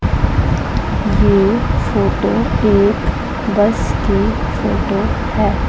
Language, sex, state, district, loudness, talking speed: Hindi, female, Punjab, Pathankot, -16 LUFS, 75 wpm